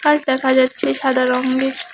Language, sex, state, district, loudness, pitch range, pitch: Bengali, female, West Bengal, Alipurduar, -17 LUFS, 255-265 Hz, 260 Hz